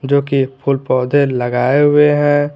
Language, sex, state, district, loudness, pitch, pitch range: Hindi, male, Jharkhand, Garhwa, -14 LUFS, 140 Hz, 130-145 Hz